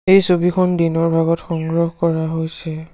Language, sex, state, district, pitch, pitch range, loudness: Assamese, male, Assam, Sonitpur, 165 Hz, 160-175 Hz, -18 LUFS